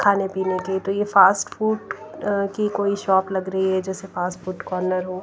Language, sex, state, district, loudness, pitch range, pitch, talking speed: Hindi, female, Punjab, Pathankot, -22 LUFS, 185-200 Hz, 190 Hz, 205 wpm